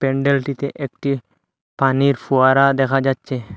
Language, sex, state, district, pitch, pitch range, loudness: Bengali, male, Assam, Hailakandi, 135 Hz, 130-140 Hz, -18 LUFS